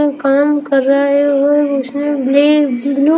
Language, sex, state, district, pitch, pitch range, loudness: Hindi, female, Haryana, Rohtak, 285 Hz, 275-290 Hz, -13 LUFS